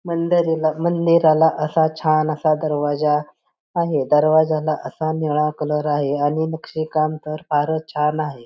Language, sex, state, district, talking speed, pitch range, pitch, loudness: Marathi, female, Maharashtra, Pune, 135 wpm, 150-160 Hz, 155 Hz, -19 LUFS